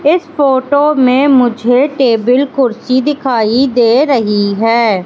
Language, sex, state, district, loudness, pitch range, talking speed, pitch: Hindi, female, Madhya Pradesh, Katni, -11 LUFS, 230-280 Hz, 120 wpm, 255 Hz